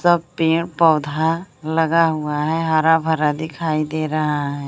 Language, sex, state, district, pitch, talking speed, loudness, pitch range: Hindi, female, Bihar, Kaimur, 160 Hz, 155 wpm, -19 LUFS, 155-165 Hz